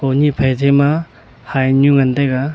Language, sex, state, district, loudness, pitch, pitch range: Wancho, male, Arunachal Pradesh, Longding, -14 LUFS, 135 Hz, 130-140 Hz